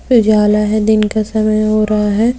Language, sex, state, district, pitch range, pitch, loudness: Hindi, female, Jharkhand, Deoghar, 210-220 Hz, 215 Hz, -13 LUFS